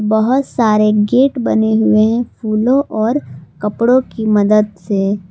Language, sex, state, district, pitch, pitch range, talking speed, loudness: Hindi, female, Jharkhand, Palamu, 215 Hz, 205-240 Hz, 135 wpm, -14 LUFS